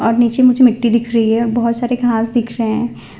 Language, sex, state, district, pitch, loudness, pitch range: Hindi, female, Gujarat, Valsad, 235 Hz, -14 LUFS, 230-240 Hz